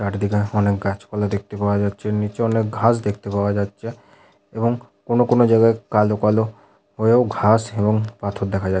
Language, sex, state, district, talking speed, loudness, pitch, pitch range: Bengali, male, West Bengal, Jhargram, 170 wpm, -20 LUFS, 105 Hz, 100-115 Hz